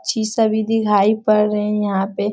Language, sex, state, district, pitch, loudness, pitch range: Hindi, female, Bihar, Jamui, 210 Hz, -17 LUFS, 205-220 Hz